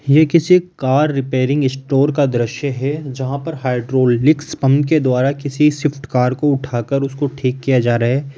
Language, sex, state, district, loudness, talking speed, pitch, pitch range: Hindi, male, Rajasthan, Jaipur, -16 LUFS, 180 wpm, 140 Hz, 130-145 Hz